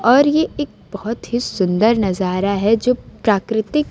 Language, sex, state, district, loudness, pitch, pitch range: Hindi, female, Bihar, Kaimur, -18 LUFS, 225 Hz, 200-250 Hz